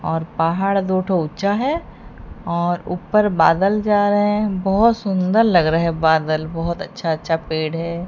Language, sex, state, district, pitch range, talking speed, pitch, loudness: Hindi, female, Odisha, Sambalpur, 165-205 Hz, 170 wpm, 180 Hz, -18 LUFS